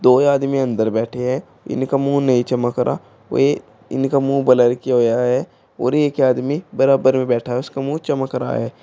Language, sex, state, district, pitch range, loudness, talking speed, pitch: Hindi, male, Uttar Pradesh, Shamli, 125-140 Hz, -18 LUFS, 205 wpm, 130 Hz